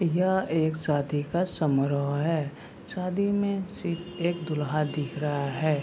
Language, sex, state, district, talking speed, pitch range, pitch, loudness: Hindi, male, Bihar, Kishanganj, 165 wpm, 145-180 Hz, 160 Hz, -28 LUFS